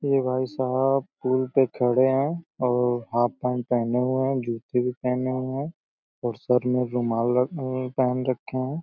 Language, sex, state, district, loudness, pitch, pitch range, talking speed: Hindi, male, Uttar Pradesh, Deoria, -25 LUFS, 130 Hz, 125-130 Hz, 175 wpm